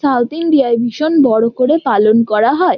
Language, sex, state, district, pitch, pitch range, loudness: Bengali, female, West Bengal, Jhargram, 255 Hz, 230-310 Hz, -13 LUFS